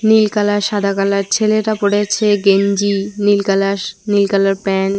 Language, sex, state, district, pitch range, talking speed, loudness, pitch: Bengali, female, West Bengal, Cooch Behar, 195-210 Hz, 155 wpm, -15 LUFS, 200 Hz